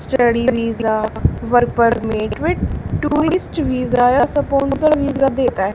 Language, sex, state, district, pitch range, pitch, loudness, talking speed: Hindi, female, Haryana, Charkhi Dadri, 230-280 Hz, 255 Hz, -17 LUFS, 85 wpm